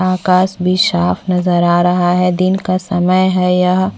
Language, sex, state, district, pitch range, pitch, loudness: Hindi, female, Chhattisgarh, Bastar, 180-185 Hz, 180 Hz, -13 LUFS